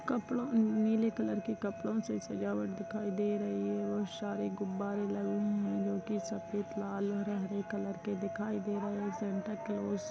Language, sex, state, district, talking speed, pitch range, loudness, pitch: Hindi, female, Rajasthan, Nagaur, 190 wpm, 205-215 Hz, -36 LUFS, 210 Hz